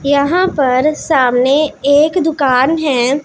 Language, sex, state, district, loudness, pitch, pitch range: Hindi, female, Punjab, Pathankot, -13 LUFS, 285 Hz, 265-305 Hz